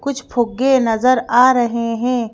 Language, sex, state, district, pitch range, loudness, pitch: Hindi, female, Madhya Pradesh, Bhopal, 230-255 Hz, -15 LUFS, 245 Hz